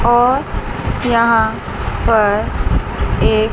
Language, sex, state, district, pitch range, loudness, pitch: Hindi, female, Chandigarh, Chandigarh, 220-240 Hz, -16 LUFS, 225 Hz